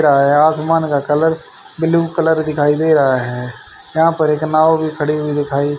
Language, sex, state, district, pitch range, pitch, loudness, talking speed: Hindi, male, Haryana, Rohtak, 145-160 Hz, 155 Hz, -15 LUFS, 195 wpm